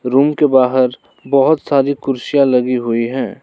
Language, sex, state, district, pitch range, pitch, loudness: Hindi, male, Arunachal Pradesh, Lower Dibang Valley, 125-140 Hz, 130 Hz, -14 LUFS